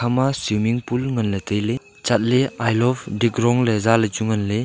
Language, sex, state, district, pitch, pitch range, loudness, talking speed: Wancho, male, Arunachal Pradesh, Longding, 115 Hz, 110-125 Hz, -20 LUFS, 230 wpm